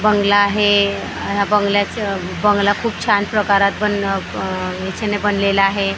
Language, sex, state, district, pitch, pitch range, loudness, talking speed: Marathi, female, Maharashtra, Gondia, 200 Hz, 195-205 Hz, -17 LUFS, 130 wpm